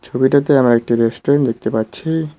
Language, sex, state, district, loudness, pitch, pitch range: Bengali, male, West Bengal, Cooch Behar, -15 LUFS, 130 Hz, 115-140 Hz